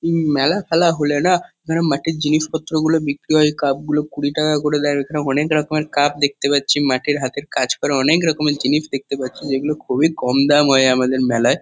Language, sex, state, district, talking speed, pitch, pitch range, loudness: Bengali, male, West Bengal, Kolkata, 205 wpm, 150 Hz, 140-155 Hz, -18 LUFS